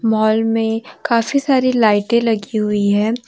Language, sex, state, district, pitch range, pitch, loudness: Hindi, female, Jharkhand, Deoghar, 215-235 Hz, 225 Hz, -16 LUFS